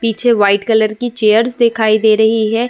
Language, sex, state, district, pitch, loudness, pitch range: Hindi, female, Uttar Pradesh, Muzaffarnagar, 220 Hz, -13 LUFS, 215-235 Hz